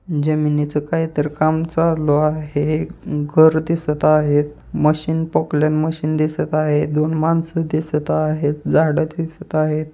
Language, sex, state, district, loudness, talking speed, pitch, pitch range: Marathi, male, Maharashtra, Pune, -18 LUFS, 120 wpm, 155 Hz, 150-160 Hz